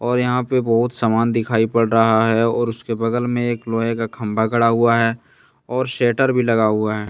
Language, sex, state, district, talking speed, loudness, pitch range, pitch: Hindi, male, Jharkhand, Deoghar, 220 wpm, -18 LUFS, 115-120 Hz, 115 Hz